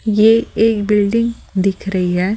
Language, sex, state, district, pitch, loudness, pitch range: Hindi, male, Delhi, New Delhi, 210 Hz, -15 LUFS, 195-225 Hz